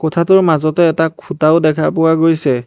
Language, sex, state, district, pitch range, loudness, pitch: Assamese, male, Assam, Hailakandi, 155-165 Hz, -13 LUFS, 160 Hz